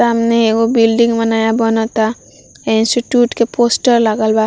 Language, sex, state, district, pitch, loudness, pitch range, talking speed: Bhojpuri, female, Bihar, Gopalganj, 230 Hz, -13 LUFS, 225-235 Hz, 145 wpm